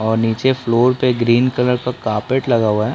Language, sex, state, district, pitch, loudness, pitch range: Hindi, male, Chhattisgarh, Korba, 120 Hz, -16 LUFS, 115-125 Hz